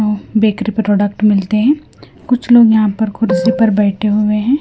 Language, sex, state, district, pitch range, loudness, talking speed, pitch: Hindi, female, Himachal Pradesh, Shimla, 210-235 Hz, -13 LUFS, 170 wpm, 215 Hz